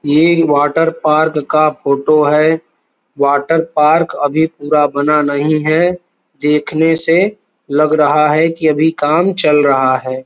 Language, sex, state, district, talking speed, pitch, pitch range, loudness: Hindi, male, Uttar Pradesh, Varanasi, 140 wpm, 155 Hz, 145-160 Hz, -13 LUFS